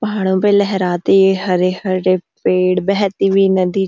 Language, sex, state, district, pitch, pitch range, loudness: Hindi, female, Uttarakhand, Uttarkashi, 190 Hz, 185-195 Hz, -15 LUFS